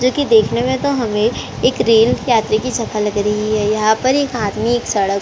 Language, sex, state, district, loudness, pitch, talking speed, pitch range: Hindi, female, Chhattisgarh, Korba, -16 LUFS, 225 Hz, 240 wpm, 210-245 Hz